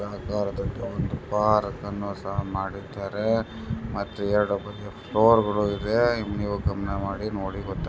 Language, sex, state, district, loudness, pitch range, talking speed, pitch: Kannada, male, Karnataka, Bellary, -26 LUFS, 100-105 Hz, 85 wpm, 100 Hz